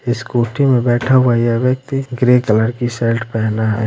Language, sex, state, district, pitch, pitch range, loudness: Hindi, male, Bihar, Gopalganj, 120 Hz, 115-125 Hz, -15 LUFS